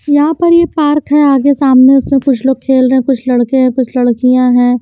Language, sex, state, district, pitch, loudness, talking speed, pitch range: Hindi, female, Haryana, Jhajjar, 265 Hz, -10 LUFS, 185 wpm, 255-285 Hz